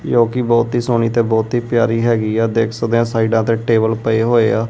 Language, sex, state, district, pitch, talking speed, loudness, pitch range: Punjabi, male, Punjab, Kapurthala, 115 Hz, 255 wpm, -16 LUFS, 115-120 Hz